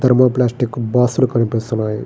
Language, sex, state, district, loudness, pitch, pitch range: Telugu, male, Andhra Pradesh, Srikakulam, -16 LUFS, 125 Hz, 115-125 Hz